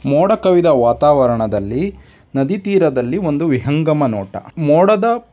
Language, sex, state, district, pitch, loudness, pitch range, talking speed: Kannada, male, Karnataka, Dharwad, 145 Hz, -15 LUFS, 120-185 Hz, 125 wpm